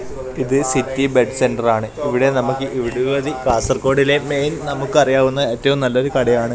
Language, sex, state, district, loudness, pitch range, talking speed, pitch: Malayalam, male, Kerala, Kasaragod, -17 LUFS, 125-140 Hz, 135 wpm, 130 Hz